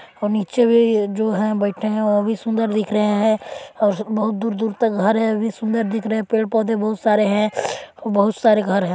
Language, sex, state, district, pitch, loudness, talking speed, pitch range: Hindi, female, Chhattisgarh, Balrampur, 215 Hz, -19 LUFS, 235 wpm, 210-225 Hz